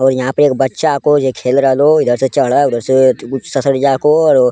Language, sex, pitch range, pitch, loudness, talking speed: Angika, male, 130-145 Hz, 135 Hz, -12 LUFS, 240 wpm